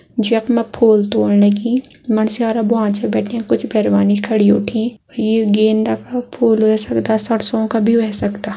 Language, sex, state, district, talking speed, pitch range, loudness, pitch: Garhwali, female, Uttarakhand, Tehri Garhwal, 170 wpm, 215-230 Hz, -15 LUFS, 220 Hz